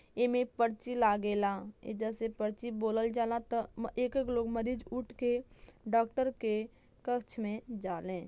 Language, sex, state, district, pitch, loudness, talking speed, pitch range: Bhojpuri, female, Uttar Pradesh, Gorakhpur, 230 Hz, -34 LUFS, 145 wpm, 215-245 Hz